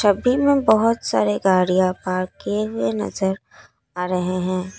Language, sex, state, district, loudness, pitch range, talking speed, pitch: Hindi, female, Assam, Kamrup Metropolitan, -20 LUFS, 180-205 Hz, 140 wpm, 185 Hz